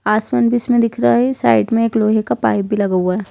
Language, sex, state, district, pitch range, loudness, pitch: Hindi, female, Jharkhand, Jamtara, 180-230 Hz, -15 LUFS, 215 Hz